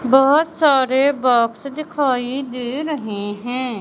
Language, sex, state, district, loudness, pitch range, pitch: Hindi, male, Madhya Pradesh, Katni, -18 LUFS, 245-285 Hz, 260 Hz